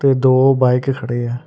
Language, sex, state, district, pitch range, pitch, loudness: Punjabi, male, Karnataka, Bangalore, 120-135 Hz, 130 Hz, -15 LUFS